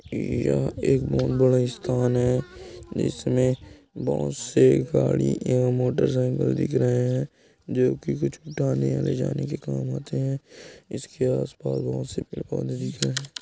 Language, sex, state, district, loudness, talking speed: Hindi, male, Chhattisgarh, Korba, -25 LUFS, 150 wpm